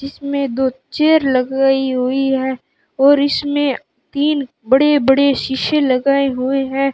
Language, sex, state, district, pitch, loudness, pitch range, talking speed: Hindi, male, Rajasthan, Bikaner, 270 Hz, -16 LUFS, 265-280 Hz, 120 wpm